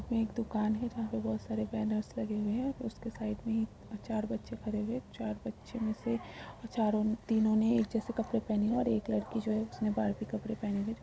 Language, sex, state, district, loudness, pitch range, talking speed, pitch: Hindi, female, Jharkhand, Sahebganj, -34 LUFS, 210-230 Hz, 245 wpm, 220 Hz